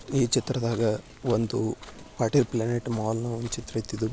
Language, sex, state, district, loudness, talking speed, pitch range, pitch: Kannada, male, Karnataka, Bijapur, -28 LUFS, 145 wpm, 110-120 Hz, 115 Hz